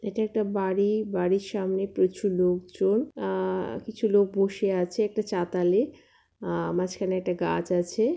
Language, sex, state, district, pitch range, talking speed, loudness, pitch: Bengali, female, West Bengal, Purulia, 180-205 Hz, 155 wpm, -27 LUFS, 190 Hz